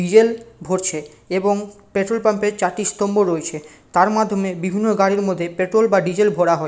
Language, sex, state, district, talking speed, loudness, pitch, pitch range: Bengali, male, West Bengal, Malda, 180 wpm, -19 LUFS, 195 Hz, 180-210 Hz